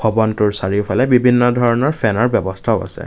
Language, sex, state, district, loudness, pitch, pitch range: Assamese, male, Assam, Kamrup Metropolitan, -16 LUFS, 115 Hz, 105-125 Hz